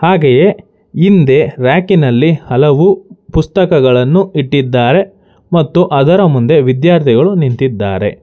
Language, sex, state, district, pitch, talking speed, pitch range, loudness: Kannada, male, Karnataka, Bangalore, 160 Hz, 75 wpm, 135-190 Hz, -10 LUFS